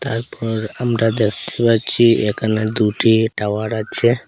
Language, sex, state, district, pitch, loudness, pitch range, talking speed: Bengali, male, Assam, Hailakandi, 110 Hz, -17 LUFS, 110-115 Hz, 110 wpm